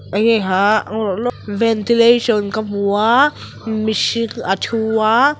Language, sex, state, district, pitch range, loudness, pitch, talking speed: Mizo, female, Mizoram, Aizawl, 210-230 Hz, -16 LUFS, 220 Hz, 120 wpm